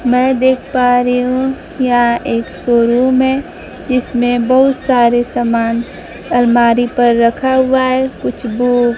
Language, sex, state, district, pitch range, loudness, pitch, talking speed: Hindi, female, Bihar, Kaimur, 235-260 Hz, -13 LUFS, 245 Hz, 140 wpm